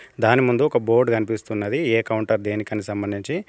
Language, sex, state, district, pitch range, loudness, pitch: Telugu, male, Telangana, Komaram Bheem, 105-115 Hz, -21 LUFS, 110 Hz